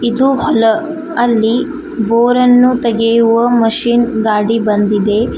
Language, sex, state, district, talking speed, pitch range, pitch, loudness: Kannada, female, Karnataka, Koppal, 100 wpm, 225-250 Hz, 235 Hz, -12 LUFS